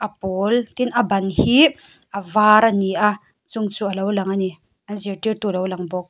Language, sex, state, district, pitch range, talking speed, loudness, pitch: Mizo, female, Mizoram, Aizawl, 190-215 Hz, 225 wpm, -19 LUFS, 200 Hz